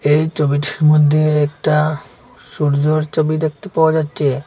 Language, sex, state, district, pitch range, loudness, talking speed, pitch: Bengali, male, Assam, Hailakandi, 145-155 Hz, -16 LUFS, 120 wpm, 150 Hz